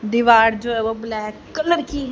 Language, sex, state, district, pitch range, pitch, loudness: Hindi, female, Haryana, Rohtak, 225-275 Hz, 230 Hz, -18 LUFS